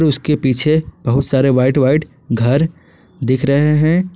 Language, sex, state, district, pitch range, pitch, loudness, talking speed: Hindi, male, Jharkhand, Garhwa, 130-155 Hz, 140 Hz, -15 LUFS, 145 wpm